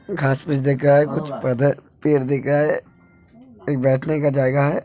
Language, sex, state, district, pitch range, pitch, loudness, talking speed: Hindi, male, Uttar Pradesh, Hamirpur, 135-150 Hz, 145 Hz, -19 LUFS, 185 wpm